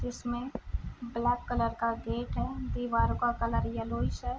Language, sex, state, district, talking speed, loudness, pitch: Hindi, female, Bihar, Gopalganj, 165 wpm, -32 LUFS, 230 Hz